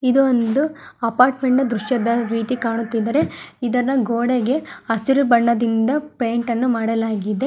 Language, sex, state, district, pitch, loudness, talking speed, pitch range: Kannada, female, Karnataka, Gulbarga, 240 Hz, -19 LUFS, 105 wpm, 230-260 Hz